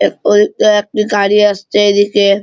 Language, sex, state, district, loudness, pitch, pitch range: Bengali, male, West Bengal, Malda, -11 LUFS, 205 Hz, 200-210 Hz